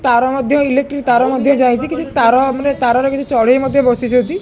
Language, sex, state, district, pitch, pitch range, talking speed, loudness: Odia, male, Odisha, Khordha, 265 Hz, 245-280 Hz, 190 wpm, -14 LUFS